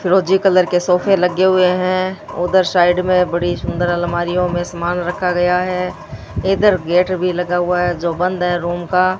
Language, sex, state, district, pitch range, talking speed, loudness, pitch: Hindi, female, Rajasthan, Bikaner, 175-185 Hz, 190 wpm, -16 LUFS, 180 Hz